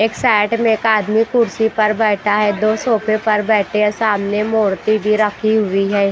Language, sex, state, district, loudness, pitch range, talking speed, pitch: Hindi, female, Bihar, Patna, -15 LUFS, 210-220 Hz, 195 wpm, 215 Hz